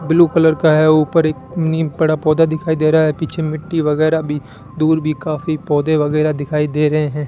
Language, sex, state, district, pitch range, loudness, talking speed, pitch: Hindi, male, Rajasthan, Bikaner, 150-160 Hz, -16 LUFS, 205 wpm, 155 Hz